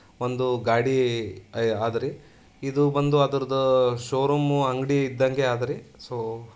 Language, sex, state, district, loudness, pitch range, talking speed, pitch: Kannada, male, Karnataka, Dharwad, -24 LUFS, 115-140 Hz, 120 wpm, 130 Hz